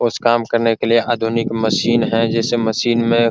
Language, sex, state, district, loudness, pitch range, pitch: Hindi, male, Bihar, Araria, -16 LUFS, 115-120 Hz, 115 Hz